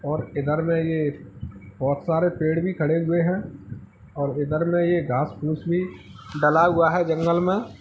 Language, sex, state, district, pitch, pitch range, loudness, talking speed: Hindi, male, Uttar Pradesh, Etah, 160 Hz, 145-170 Hz, -23 LUFS, 175 wpm